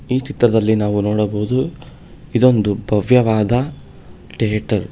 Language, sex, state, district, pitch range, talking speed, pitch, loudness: Kannada, male, Karnataka, Bangalore, 105-125 Hz, 95 wpm, 110 Hz, -17 LUFS